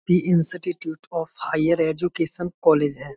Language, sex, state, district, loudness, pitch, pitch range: Hindi, male, Uttar Pradesh, Budaun, -20 LUFS, 165 Hz, 160-175 Hz